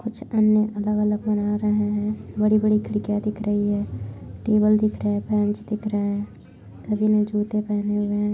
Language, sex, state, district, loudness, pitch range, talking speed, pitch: Hindi, female, Bihar, Saharsa, -23 LUFS, 205-215 Hz, 170 wpm, 210 Hz